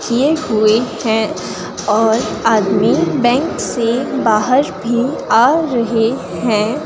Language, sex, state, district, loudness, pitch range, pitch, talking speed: Hindi, female, Himachal Pradesh, Shimla, -15 LUFS, 220-265 Hz, 235 Hz, 105 wpm